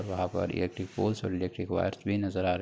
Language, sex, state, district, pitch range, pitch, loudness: Hindi, male, Bihar, Begusarai, 90-100 Hz, 90 Hz, -32 LUFS